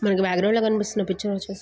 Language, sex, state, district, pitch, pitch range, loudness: Telugu, female, Andhra Pradesh, Guntur, 200 Hz, 190-210 Hz, -23 LUFS